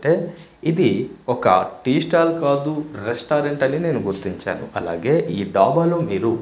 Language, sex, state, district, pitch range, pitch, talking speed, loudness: Telugu, male, Andhra Pradesh, Manyam, 115-165 Hz, 145 Hz, 140 wpm, -20 LUFS